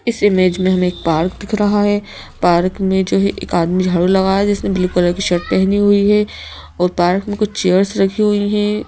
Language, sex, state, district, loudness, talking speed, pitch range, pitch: Hindi, female, Madhya Pradesh, Bhopal, -15 LUFS, 230 wpm, 180-205 Hz, 195 Hz